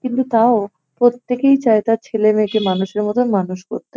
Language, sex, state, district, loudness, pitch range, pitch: Bengali, female, West Bengal, North 24 Parganas, -16 LUFS, 205-245 Hz, 220 Hz